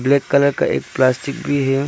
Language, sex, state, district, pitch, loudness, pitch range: Hindi, male, Arunachal Pradesh, Lower Dibang Valley, 140 Hz, -17 LUFS, 135-140 Hz